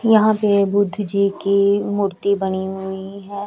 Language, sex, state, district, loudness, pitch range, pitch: Hindi, female, Bihar, Patna, -18 LUFS, 195-205 Hz, 200 Hz